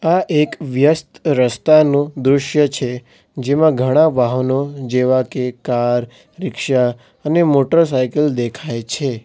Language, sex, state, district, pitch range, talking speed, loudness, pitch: Gujarati, male, Gujarat, Valsad, 125-150 Hz, 110 wpm, -16 LUFS, 135 Hz